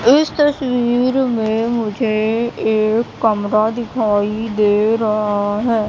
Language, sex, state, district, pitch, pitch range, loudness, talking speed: Hindi, female, Madhya Pradesh, Katni, 220 Hz, 215-240 Hz, -17 LUFS, 100 wpm